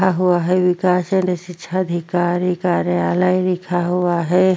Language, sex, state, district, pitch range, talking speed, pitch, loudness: Hindi, female, Chhattisgarh, Korba, 175-185 Hz, 130 wpm, 180 Hz, -18 LUFS